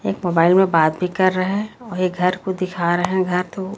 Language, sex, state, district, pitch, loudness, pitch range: Hindi, female, Chhattisgarh, Raipur, 185 Hz, -19 LUFS, 180-190 Hz